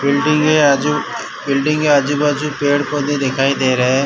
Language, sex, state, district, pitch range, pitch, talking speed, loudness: Hindi, male, Gujarat, Valsad, 140-150 Hz, 145 Hz, 190 wpm, -15 LUFS